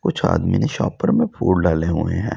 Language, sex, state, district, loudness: Hindi, male, Delhi, New Delhi, -19 LUFS